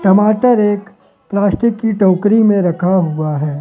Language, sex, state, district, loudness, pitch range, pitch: Hindi, male, Madhya Pradesh, Katni, -14 LUFS, 180-215 Hz, 200 Hz